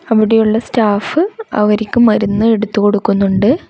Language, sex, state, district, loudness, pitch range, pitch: Malayalam, female, Kerala, Kasaragod, -13 LUFS, 210-230 Hz, 220 Hz